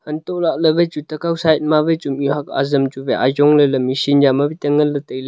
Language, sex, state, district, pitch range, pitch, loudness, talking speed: Wancho, male, Arunachal Pradesh, Longding, 140-155 Hz, 145 Hz, -16 LUFS, 275 wpm